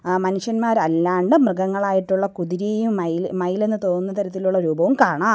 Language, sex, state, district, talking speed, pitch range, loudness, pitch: Malayalam, female, Kerala, Kollam, 125 wpm, 180-215 Hz, -20 LUFS, 190 Hz